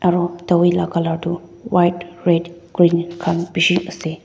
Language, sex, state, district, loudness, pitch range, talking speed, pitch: Nagamese, female, Nagaland, Dimapur, -18 LUFS, 170-175 Hz, 155 wpm, 175 Hz